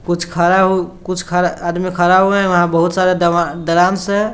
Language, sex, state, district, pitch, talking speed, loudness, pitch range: Hindi, male, Bihar, Sitamarhi, 180 Hz, 195 wpm, -14 LUFS, 175-185 Hz